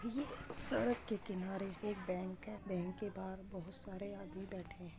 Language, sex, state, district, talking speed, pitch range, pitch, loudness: Hindi, female, Uttar Pradesh, Muzaffarnagar, 180 wpm, 185-210 Hz, 195 Hz, -43 LUFS